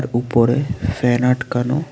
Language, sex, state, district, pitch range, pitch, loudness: Bengali, male, Tripura, West Tripura, 120-125 Hz, 125 Hz, -18 LUFS